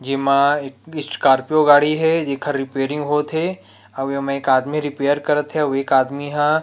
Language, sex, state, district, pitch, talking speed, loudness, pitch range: Chhattisgarhi, male, Chhattisgarh, Rajnandgaon, 145 Hz, 200 wpm, -18 LUFS, 135-150 Hz